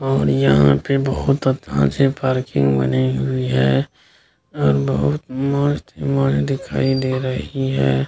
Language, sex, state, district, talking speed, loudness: Hindi, male, Bihar, Kishanganj, 140 wpm, -18 LUFS